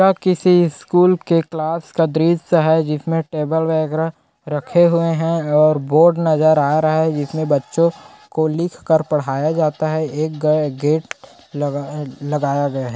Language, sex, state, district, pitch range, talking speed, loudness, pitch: Hindi, male, Chhattisgarh, Korba, 150-165 Hz, 165 wpm, -17 LUFS, 155 Hz